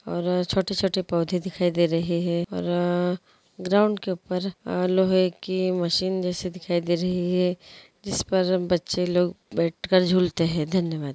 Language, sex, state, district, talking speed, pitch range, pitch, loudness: Hindi, female, Andhra Pradesh, Guntur, 150 wpm, 175-185 Hz, 180 Hz, -24 LUFS